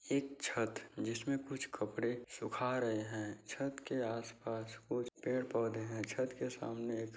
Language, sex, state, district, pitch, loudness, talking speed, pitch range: Hindi, male, Bihar, Kishanganj, 115 Hz, -40 LUFS, 150 wpm, 110-130 Hz